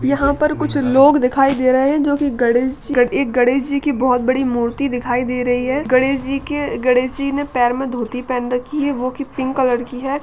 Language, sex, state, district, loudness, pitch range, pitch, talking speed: Hindi, female, Uttarakhand, Tehri Garhwal, -17 LUFS, 250-280 Hz, 260 Hz, 215 wpm